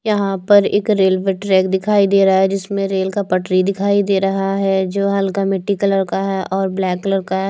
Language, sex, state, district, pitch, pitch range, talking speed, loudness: Hindi, female, Maharashtra, Mumbai Suburban, 195 Hz, 190-200 Hz, 225 wpm, -16 LUFS